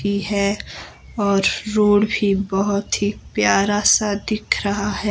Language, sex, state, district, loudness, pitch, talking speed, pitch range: Hindi, female, Himachal Pradesh, Shimla, -19 LUFS, 205 Hz, 140 wpm, 200-210 Hz